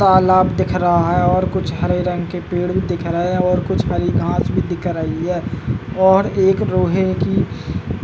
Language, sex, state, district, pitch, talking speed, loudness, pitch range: Hindi, male, Uttar Pradesh, Muzaffarnagar, 180 Hz, 200 wpm, -17 LUFS, 175-185 Hz